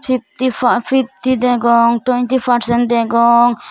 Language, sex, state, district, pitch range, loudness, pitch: Chakma, female, Tripura, Dhalai, 235-255 Hz, -14 LUFS, 245 Hz